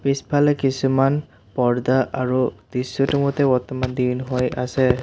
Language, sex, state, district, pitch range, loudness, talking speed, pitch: Assamese, male, Assam, Sonitpur, 125-135 Hz, -21 LUFS, 120 wpm, 130 Hz